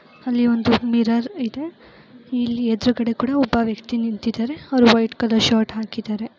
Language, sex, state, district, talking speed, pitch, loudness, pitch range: Kannada, female, Karnataka, Gulbarga, 140 wpm, 235 Hz, -20 LUFS, 225-245 Hz